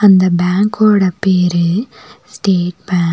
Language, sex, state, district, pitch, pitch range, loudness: Tamil, female, Tamil Nadu, Nilgiris, 185 Hz, 175-200 Hz, -13 LUFS